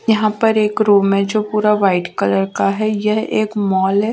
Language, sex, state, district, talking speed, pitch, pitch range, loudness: Hindi, female, Delhi, New Delhi, 220 wpm, 210 Hz, 195-215 Hz, -16 LUFS